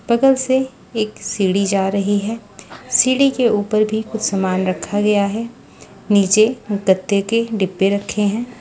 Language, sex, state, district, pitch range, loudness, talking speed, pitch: Hindi, female, Punjab, Pathankot, 195-230 Hz, -17 LUFS, 155 wpm, 210 Hz